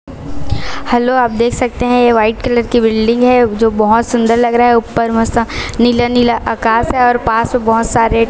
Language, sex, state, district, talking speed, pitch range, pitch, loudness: Hindi, female, Chhattisgarh, Raipur, 190 wpm, 230-245 Hz, 235 Hz, -12 LUFS